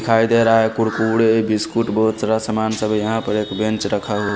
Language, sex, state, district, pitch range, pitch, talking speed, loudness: Hindi, male, Haryana, Rohtak, 105-115 Hz, 110 Hz, 190 wpm, -18 LUFS